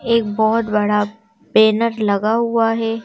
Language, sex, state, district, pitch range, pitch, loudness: Hindi, female, Madhya Pradesh, Bhopal, 210-230 Hz, 225 Hz, -17 LUFS